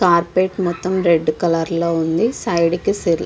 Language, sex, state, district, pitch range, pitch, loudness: Telugu, female, Andhra Pradesh, Visakhapatnam, 170-185 Hz, 170 Hz, -18 LUFS